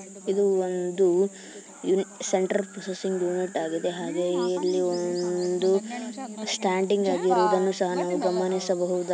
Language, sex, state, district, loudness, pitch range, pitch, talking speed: Kannada, female, Karnataka, Belgaum, -26 LUFS, 180-195 Hz, 185 Hz, 90 wpm